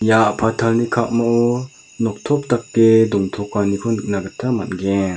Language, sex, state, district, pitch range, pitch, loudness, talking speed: Garo, male, Meghalaya, South Garo Hills, 100-120 Hz, 115 Hz, -18 LUFS, 105 wpm